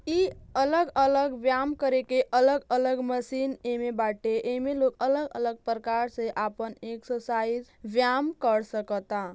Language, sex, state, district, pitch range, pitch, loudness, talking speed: Bhojpuri, female, Uttar Pradesh, Gorakhpur, 230-265 Hz, 250 Hz, -27 LUFS, 140 wpm